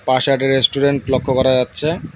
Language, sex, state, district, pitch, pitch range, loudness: Bengali, male, West Bengal, Alipurduar, 130 Hz, 130-135 Hz, -16 LUFS